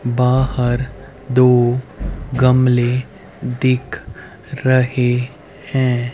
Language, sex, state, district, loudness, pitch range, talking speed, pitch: Hindi, male, Haryana, Rohtak, -17 LUFS, 125-130 Hz, 60 wpm, 125 Hz